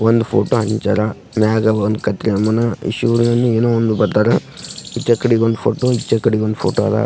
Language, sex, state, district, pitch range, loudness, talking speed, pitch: Kannada, male, Karnataka, Gulbarga, 110-115 Hz, -16 LUFS, 120 wpm, 110 Hz